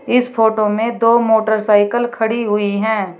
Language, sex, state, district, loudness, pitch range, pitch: Hindi, female, Uttar Pradesh, Shamli, -15 LUFS, 210-230 Hz, 220 Hz